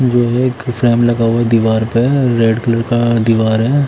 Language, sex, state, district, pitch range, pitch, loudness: Hindi, male, Himachal Pradesh, Shimla, 115-120 Hz, 120 Hz, -13 LUFS